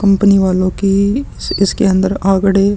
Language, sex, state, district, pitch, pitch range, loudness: Hindi, male, Chhattisgarh, Sukma, 195 Hz, 190-200 Hz, -13 LUFS